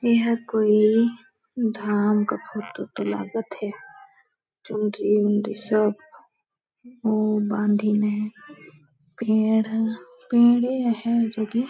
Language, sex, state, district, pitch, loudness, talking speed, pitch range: Hindi, female, Chhattisgarh, Balrampur, 220 Hz, -23 LUFS, 100 wpm, 210-235 Hz